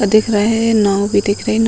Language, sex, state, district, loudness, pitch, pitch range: Hindi, female, Bihar, Muzaffarpur, -14 LUFS, 210 Hz, 205-220 Hz